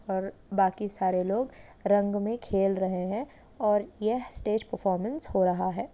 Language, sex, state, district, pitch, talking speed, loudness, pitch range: Hindi, female, Jharkhand, Sahebganj, 200 Hz, 160 wpm, -29 LUFS, 190-220 Hz